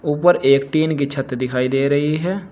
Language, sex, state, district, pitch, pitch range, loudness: Hindi, male, Uttar Pradesh, Saharanpur, 145 Hz, 135-160 Hz, -18 LUFS